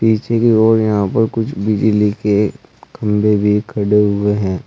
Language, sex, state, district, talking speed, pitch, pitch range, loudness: Hindi, male, Uttar Pradesh, Saharanpur, 165 wpm, 105 Hz, 105-110 Hz, -15 LUFS